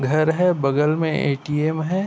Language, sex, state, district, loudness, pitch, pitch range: Hindi, male, Chhattisgarh, Bilaspur, -20 LUFS, 155 Hz, 150-160 Hz